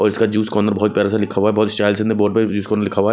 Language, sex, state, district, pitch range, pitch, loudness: Hindi, male, Odisha, Nuapada, 105-110 Hz, 105 Hz, -17 LUFS